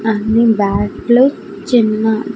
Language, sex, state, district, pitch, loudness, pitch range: Telugu, female, Andhra Pradesh, Sri Satya Sai, 220 Hz, -14 LUFS, 215-240 Hz